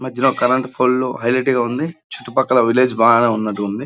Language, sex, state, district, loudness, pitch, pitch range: Telugu, male, Andhra Pradesh, Srikakulam, -16 LUFS, 125 Hz, 115-130 Hz